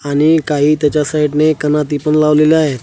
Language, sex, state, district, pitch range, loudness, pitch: Marathi, male, Maharashtra, Washim, 150-155 Hz, -13 LUFS, 150 Hz